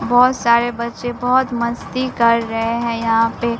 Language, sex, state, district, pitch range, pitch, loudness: Hindi, female, Bihar, Katihar, 230-245 Hz, 235 Hz, -17 LUFS